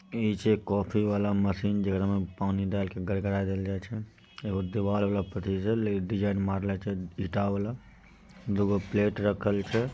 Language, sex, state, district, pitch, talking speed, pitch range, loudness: Angika, male, Bihar, Begusarai, 100 Hz, 185 wpm, 95-105 Hz, -30 LUFS